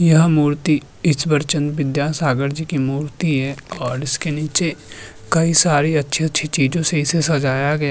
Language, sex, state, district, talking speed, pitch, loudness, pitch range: Hindi, male, Uttarakhand, Tehri Garhwal, 165 wpm, 150 Hz, -18 LUFS, 140-160 Hz